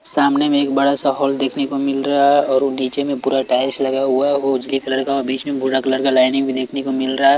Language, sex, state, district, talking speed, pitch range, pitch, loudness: Hindi, male, Chhattisgarh, Raipur, 300 wpm, 130-140 Hz, 135 Hz, -17 LUFS